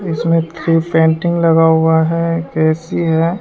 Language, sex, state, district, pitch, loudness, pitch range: Hindi, male, Bihar, West Champaran, 165 Hz, -14 LUFS, 160-165 Hz